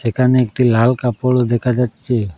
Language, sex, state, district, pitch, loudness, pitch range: Bengali, male, Assam, Hailakandi, 125 Hz, -16 LUFS, 120-125 Hz